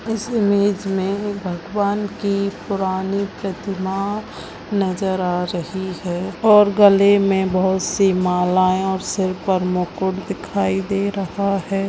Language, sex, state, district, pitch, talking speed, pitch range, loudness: Hindi, female, Chhattisgarh, Balrampur, 195 Hz, 125 wpm, 185-200 Hz, -19 LUFS